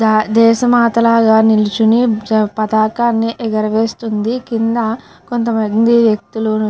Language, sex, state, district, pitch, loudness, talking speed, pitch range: Telugu, female, Andhra Pradesh, Krishna, 225 Hz, -14 LUFS, 100 wpm, 215-230 Hz